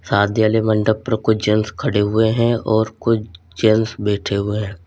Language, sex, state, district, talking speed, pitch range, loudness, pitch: Hindi, male, Uttar Pradesh, Lalitpur, 185 wpm, 105-110 Hz, -18 LUFS, 110 Hz